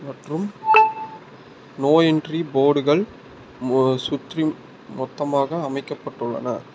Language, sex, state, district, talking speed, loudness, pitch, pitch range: Tamil, male, Tamil Nadu, Nilgiris, 70 wpm, -21 LUFS, 145 Hz, 135-165 Hz